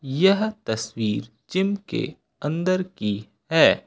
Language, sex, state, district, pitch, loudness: Hindi, male, Uttar Pradesh, Lucknow, 150 Hz, -24 LUFS